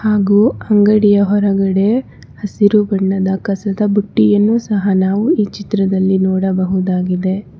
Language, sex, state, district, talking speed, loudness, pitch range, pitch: Kannada, female, Karnataka, Bangalore, 95 wpm, -14 LUFS, 190-210 Hz, 200 Hz